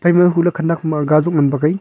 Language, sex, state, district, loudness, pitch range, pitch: Wancho, male, Arunachal Pradesh, Longding, -15 LUFS, 150-175 Hz, 165 Hz